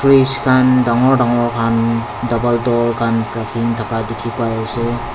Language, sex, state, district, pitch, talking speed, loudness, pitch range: Nagamese, male, Nagaland, Dimapur, 120 Hz, 130 wpm, -15 LUFS, 115-120 Hz